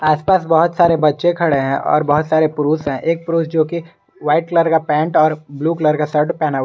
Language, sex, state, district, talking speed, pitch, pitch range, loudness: Hindi, male, Jharkhand, Garhwa, 225 wpm, 155 Hz, 150-165 Hz, -16 LUFS